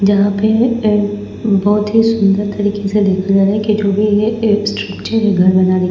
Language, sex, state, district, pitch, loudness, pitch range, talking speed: Hindi, female, Bihar, Patna, 205 Hz, -14 LUFS, 200-215 Hz, 205 wpm